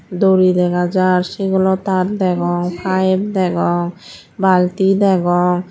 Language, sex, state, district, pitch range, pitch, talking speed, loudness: Chakma, female, Tripura, Dhalai, 180-190 Hz, 185 Hz, 85 wpm, -16 LUFS